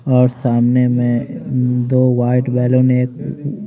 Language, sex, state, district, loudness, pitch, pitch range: Hindi, male, Haryana, Rohtak, -15 LUFS, 125 Hz, 125-130 Hz